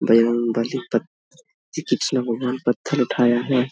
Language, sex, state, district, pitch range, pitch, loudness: Hindi, male, Jharkhand, Sahebganj, 115-130 Hz, 125 Hz, -21 LUFS